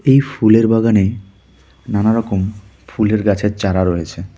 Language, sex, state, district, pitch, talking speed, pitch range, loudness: Bengali, male, West Bengal, Darjeeling, 105 Hz, 125 wpm, 95-110 Hz, -15 LUFS